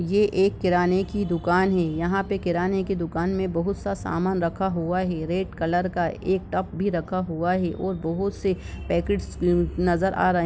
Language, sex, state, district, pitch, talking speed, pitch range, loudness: Hindi, male, Jharkhand, Jamtara, 180 Hz, 200 wpm, 175-190 Hz, -24 LUFS